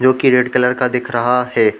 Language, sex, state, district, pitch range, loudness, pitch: Hindi, male, Chhattisgarh, Korba, 120-125 Hz, -15 LUFS, 125 Hz